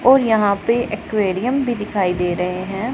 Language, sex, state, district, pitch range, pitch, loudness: Hindi, female, Punjab, Pathankot, 190-240 Hz, 210 Hz, -19 LUFS